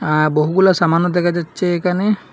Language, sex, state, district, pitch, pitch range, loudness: Bengali, male, Assam, Hailakandi, 175 Hz, 165-180 Hz, -16 LUFS